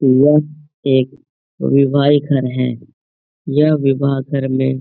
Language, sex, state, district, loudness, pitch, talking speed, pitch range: Hindi, male, Bihar, Jamui, -15 LUFS, 135 Hz, 135 wpm, 130-145 Hz